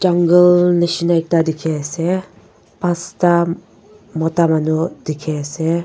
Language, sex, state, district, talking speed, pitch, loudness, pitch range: Nagamese, female, Nagaland, Dimapur, 100 wpm, 170 Hz, -16 LUFS, 160-175 Hz